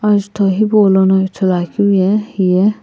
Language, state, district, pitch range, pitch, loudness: Sumi, Nagaland, Kohima, 190-210 Hz, 195 Hz, -13 LUFS